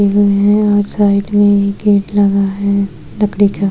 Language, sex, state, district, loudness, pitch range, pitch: Hindi, female, Uttar Pradesh, Jyotiba Phule Nagar, -13 LUFS, 200-205 Hz, 200 Hz